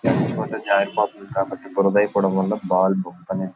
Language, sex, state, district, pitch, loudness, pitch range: Telugu, male, Andhra Pradesh, Visakhapatnam, 95 Hz, -21 LUFS, 95-100 Hz